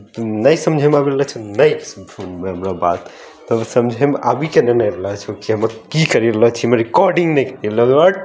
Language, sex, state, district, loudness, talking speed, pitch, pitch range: Hindi, male, Chandigarh, Chandigarh, -16 LUFS, 125 wpm, 120 Hz, 105-145 Hz